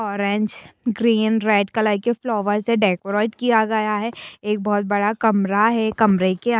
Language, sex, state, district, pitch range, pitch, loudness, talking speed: Hindi, female, Bihar, Saran, 205-225 Hz, 215 Hz, -20 LUFS, 180 wpm